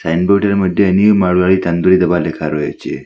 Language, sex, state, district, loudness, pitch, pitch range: Bengali, male, Assam, Hailakandi, -13 LUFS, 90 Hz, 85-100 Hz